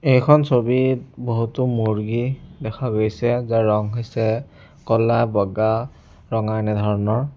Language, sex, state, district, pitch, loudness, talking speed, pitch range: Assamese, male, Assam, Sonitpur, 115 Hz, -20 LUFS, 105 wpm, 110-125 Hz